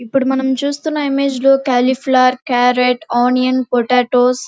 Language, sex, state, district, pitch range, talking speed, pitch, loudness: Telugu, female, Andhra Pradesh, Krishna, 250-270 Hz, 135 wpm, 255 Hz, -14 LUFS